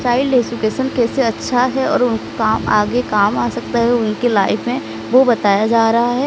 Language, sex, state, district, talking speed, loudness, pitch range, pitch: Hindi, female, Odisha, Sambalpur, 190 wpm, -16 LUFS, 220-250 Hz, 240 Hz